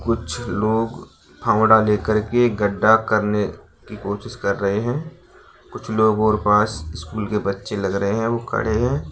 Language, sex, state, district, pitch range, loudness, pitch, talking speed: Hindi, male, Bihar, Bhagalpur, 100-115 Hz, -20 LUFS, 110 Hz, 160 wpm